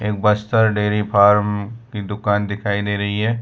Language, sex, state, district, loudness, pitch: Hindi, male, Gujarat, Valsad, -18 LUFS, 105 Hz